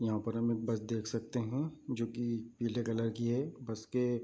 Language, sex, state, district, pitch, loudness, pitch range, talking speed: Hindi, male, Bihar, Bhagalpur, 115 Hz, -36 LUFS, 115-120 Hz, 225 wpm